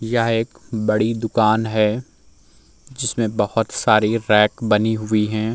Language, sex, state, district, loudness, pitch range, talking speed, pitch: Hindi, male, Uttar Pradesh, Muzaffarnagar, -19 LUFS, 105-115 Hz, 130 wpm, 110 Hz